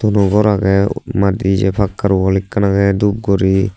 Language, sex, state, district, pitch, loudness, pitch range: Chakma, male, Tripura, Unakoti, 100 Hz, -15 LUFS, 95-100 Hz